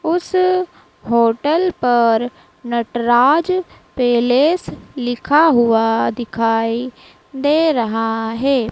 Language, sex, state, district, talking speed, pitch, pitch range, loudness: Hindi, female, Madhya Pradesh, Dhar, 75 wpm, 245 Hz, 230-320 Hz, -16 LUFS